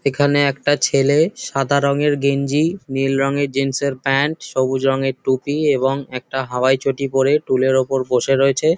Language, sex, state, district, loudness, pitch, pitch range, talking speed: Bengali, male, West Bengal, Jhargram, -18 LUFS, 135 Hz, 135-145 Hz, 165 wpm